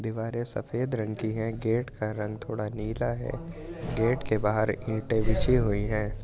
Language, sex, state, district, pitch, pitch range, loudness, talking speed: Hindi, male, Uttar Pradesh, Jyotiba Phule Nagar, 110 Hz, 105-120 Hz, -29 LUFS, 180 wpm